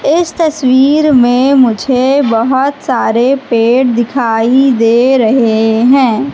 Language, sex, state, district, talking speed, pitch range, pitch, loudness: Hindi, female, Madhya Pradesh, Katni, 105 wpm, 235-275 Hz, 255 Hz, -10 LUFS